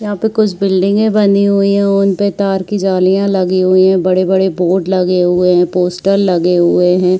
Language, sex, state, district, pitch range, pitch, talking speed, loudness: Hindi, female, Bihar, Saharsa, 185-200 Hz, 190 Hz, 200 wpm, -12 LUFS